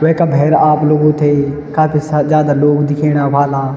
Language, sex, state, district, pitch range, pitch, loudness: Garhwali, male, Uttarakhand, Tehri Garhwal, 145-150 Hz, 150 Hz, -12 LUFS